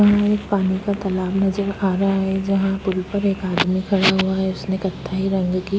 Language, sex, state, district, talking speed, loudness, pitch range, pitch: Hindi, female, Uttar Pradesh, Budaun, 230 wpm, -20 LUFS, 190-195 Hz, 195 Hz